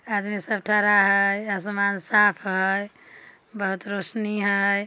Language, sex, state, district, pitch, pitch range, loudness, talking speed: Maithili, female, Bihar, Samastipur, 200 Hz, 200-210 Hz, -22 LUFS, 125 wpm